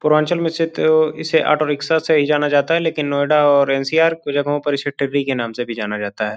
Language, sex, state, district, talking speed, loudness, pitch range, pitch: Hindi, male, Uttar Pradesh, Gorakhpur, 235 wpm, -17 LUFS, 140-160 Hz, 145 Hz